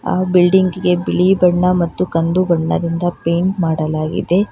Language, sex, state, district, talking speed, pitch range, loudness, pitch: Kannada, female, Karnataka, Bangalore, 135 wpm, 170-185 Hz, -15 LUFS, 180 Hz